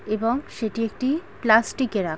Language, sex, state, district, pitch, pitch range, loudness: Bengali, female, West Bengal, Kolkata, 225 Hz, 215-255 Hz, -23 LUFS